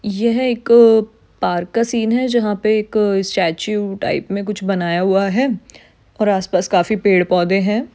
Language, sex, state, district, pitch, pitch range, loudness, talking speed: Hindi, female, Maharashtra, Dhule, 210 Hz, 195-230 Hz, -16 LUFS, 165 wpm